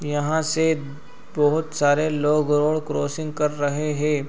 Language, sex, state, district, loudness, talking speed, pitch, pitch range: Hindi, male, Bihar, Supaul, -22 LUFS, 140 wpm, 150 Hz, 145-155 Hz